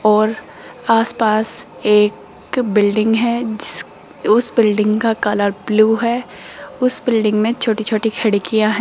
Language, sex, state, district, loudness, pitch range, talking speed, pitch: Hindi, female, Rajasthan, Jaipur, -16 LUFS, 215-230 Hz, 125 wpm, 220 Hz